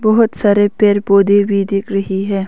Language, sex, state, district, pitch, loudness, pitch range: Hindi, female, Arunachal Pradesh, Longding, 200 Hz, -13 LUFS, 195-205 Hz